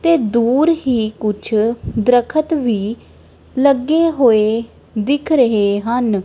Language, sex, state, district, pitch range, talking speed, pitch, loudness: Punjabi, female, Punjab, Kapurthala, 220-285 Hz, 105 wpm, 240 Hz, -16 LUFS